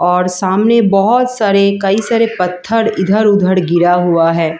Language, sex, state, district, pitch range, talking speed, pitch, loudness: Hindi, female, Delhi, New Delhi, 180-220 Hz, 145 wpm, 195 Hz, -12 LUFS